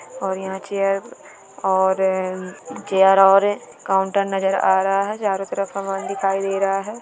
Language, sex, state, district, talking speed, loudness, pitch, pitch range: Hindi, female, Bihar, Jahanabad, 155 wpm, -20 LUFS, 195 Hz, 190-195 Hz